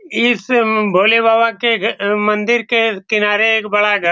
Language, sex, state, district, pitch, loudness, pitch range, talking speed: Hindi, male, Bihar, Saran, 220 Hz, -14 LUFS, 210-230 Hz, 160 wpm